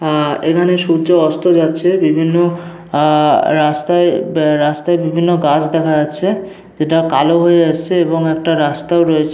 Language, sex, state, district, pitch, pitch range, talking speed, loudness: Bengali, male, West Bengal, Paschim Medinipur, 165 Hz, 155-175 Hz, 130 wpm, -13 LUFS